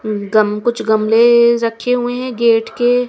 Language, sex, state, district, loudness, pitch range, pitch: Hindi, female, Chandigarh, Chandigarh, -14 LUFS, 220-245 Hz, 235 Hz